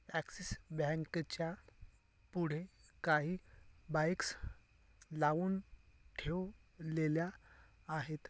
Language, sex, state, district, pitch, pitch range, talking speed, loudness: Marathi, male, Maharashtra, Pune, 160 Hz, 150-170 Hz, 70 wpm, -40 LUFS